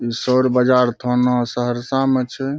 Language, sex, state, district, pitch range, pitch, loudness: Maithili, male, Bihar, Saharsa, 120-130 Hz, 125 Hz, -18 LUFS